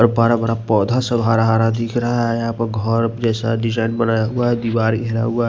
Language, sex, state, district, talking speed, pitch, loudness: Hindi, male, Maharashtra, Washim, 240 wpm, 115 Hz, -18 LUFS